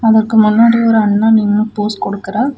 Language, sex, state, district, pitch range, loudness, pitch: Tamil, female, Tamil Nadu, Namakkal, 210-225 Hz, -12 LUFS, 220 Hz